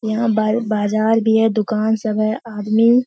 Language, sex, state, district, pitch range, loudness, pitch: Hindi, female, Bihar, Purnia, 215-225 Hz, -17 LUFS, 220 Hz